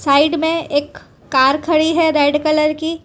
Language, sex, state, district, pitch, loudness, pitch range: Hindi, female, Gujarat, Valsad, 305 Hz, -15 LUFS, 290-320 Hz